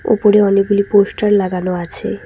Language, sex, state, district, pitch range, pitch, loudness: Bengali, female, West Bengal, Cooch Behar, 185-210 Hz, 200 Hz, -14 LUFS